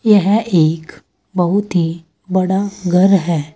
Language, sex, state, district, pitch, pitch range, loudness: Hindi, female, Uttar Pradesh, Saharanpur, 185 Hz, 170-195 Hz, -15 LUFS